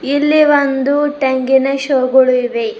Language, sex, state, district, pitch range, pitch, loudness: Kannada, female, Karnataka, Bidar, 260-285 Hz, 270 Hz, -13 LUFS